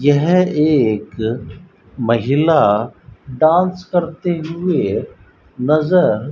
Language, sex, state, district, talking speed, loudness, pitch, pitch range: Hindi, male, Rajasthan, Bikaner, 75 wpm, -16 LUFS, 150 Hz, 120-175 Hz